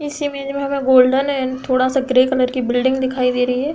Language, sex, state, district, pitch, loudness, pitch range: Hindi, female, Uttar Pradesh, Hamirpur, 260 Hz, -17 LUFS, 255-275 Hz